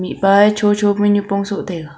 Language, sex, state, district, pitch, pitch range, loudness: Wancho, female, Arunachal Pradesh, Longding, 205 Hz, 195-205 Hz, -15 LUFS